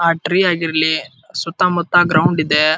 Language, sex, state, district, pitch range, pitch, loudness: Kannada, male, Karnataka, Dharwad, 160-175 Hz, 165 Hz, -16 LUFS